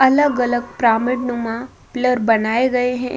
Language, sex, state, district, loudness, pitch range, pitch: Hindi, female, Uttar Pradesh, Budaun, -18 LUFS, 235-255 Hz, 245 Hz